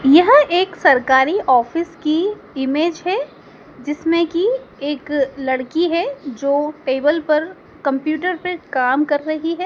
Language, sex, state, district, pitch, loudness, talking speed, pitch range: Hindi, female, Madhya Pradesh, Dhar, 305 Hz, -18 LUFS, 130 wpm, 275-340 Hz